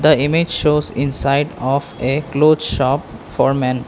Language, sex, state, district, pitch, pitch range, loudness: English, male, Assam, Kamrup Metropolitan, 140 Hz, 135-150 Hz, -17 LUFS